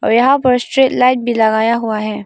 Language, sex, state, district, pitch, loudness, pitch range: Hindi, female, Arunachal Pradesh, Lower Dibang Valley, 235 Hz, -13 LUFS, 220-250 Hz